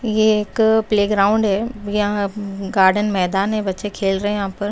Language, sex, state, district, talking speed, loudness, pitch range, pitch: Hindi, female, Chhattisgarh, Raipur, 180 wpm, -18 LUFS, 195-210 Hz, 205 Hz